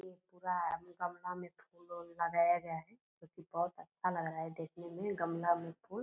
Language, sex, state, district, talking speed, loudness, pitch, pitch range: Hindi, female, Bihar, Purnia, 200 wpm, -39 LUFS, 175 Hz, 170-180 Hz